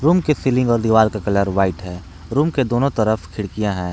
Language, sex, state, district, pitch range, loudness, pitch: Hindi, male, Jharkhand, Palamu, 100-130 Hz, -18 LUFS, 110 Hz